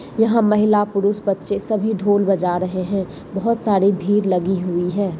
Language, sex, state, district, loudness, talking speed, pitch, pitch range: Hindi, male, Bihar, Bhagalpur, -19 LUFS, 175 wpm, 200 Hz, 185-210 Hz